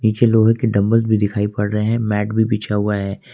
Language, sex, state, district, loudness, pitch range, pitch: Hindi, male, Jharkhand, Ranchi, -17 LUFS, 105-110 Hz, 105 Hz